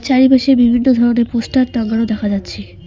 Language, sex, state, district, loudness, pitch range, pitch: Bengali, female, West Bengal, Cooch Behar, -14 LUFS, 220-260 Hz, 240 Hz